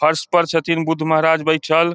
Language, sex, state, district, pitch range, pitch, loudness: Maithili, male, Bihar, Samastipur, 160-165 Hz, 160 Hz, -17 LUFS